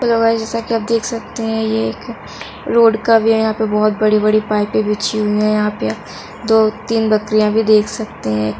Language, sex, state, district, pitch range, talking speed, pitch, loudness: Hindi, female, Bihar, Saharsa, 210-225 Hz, 215 wpm, 215 Hz, -16 LUFS